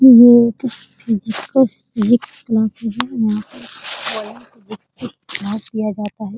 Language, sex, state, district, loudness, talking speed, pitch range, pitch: Hindi, female, Bihar, Muzaffarpur, -17 LUFS, 115 wpm, 215-240 Hz, 220 Hz